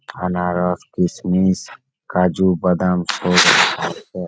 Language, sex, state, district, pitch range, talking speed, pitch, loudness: Bengali, male, West Bengal, Malda, 90-95 Hz, 85 wpm, 90 Hz, -17 LUFS